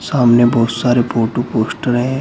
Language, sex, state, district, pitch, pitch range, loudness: Hindi, male, Uttar Pradesh, Shamli, 120 Hz, 115-125 Hz, -15 LUFS